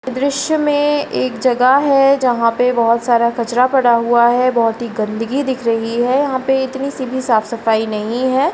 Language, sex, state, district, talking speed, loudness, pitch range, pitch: Hindi, female, Uttar Pradesh, Etah, 190 wpm, -15 LUFS, 235-265 Hz, 250 Hz